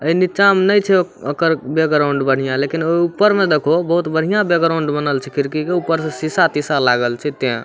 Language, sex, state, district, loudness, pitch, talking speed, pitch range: Maithili, male, Bihar, Samastipur, -16 LUFS, 160 Hz, 225 wpm, 145-175 Hz